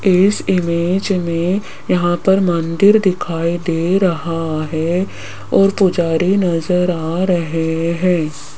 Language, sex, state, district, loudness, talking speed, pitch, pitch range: Hindi, female, Rajasthan, Jaipur, -16 LUFS, 110 wpm, 175 Hz, 165-190 Hz